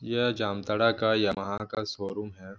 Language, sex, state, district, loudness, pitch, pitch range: Hindi, male, Jharkhand, Jamtara, -28 LUFS, 105 Hz, 100-110 Hz